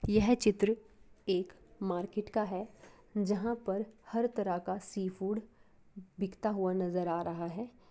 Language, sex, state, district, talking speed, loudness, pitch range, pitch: Hindi, female, Bihar, East Champaran, 130 wpm, -35 LUFS, 185-215 Hz, 200 Hz